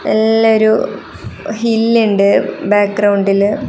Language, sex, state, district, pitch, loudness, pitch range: Malayalam, female, Kerala, Kasaragod, 210 Hz, -13 LUFS, 200-225 Hz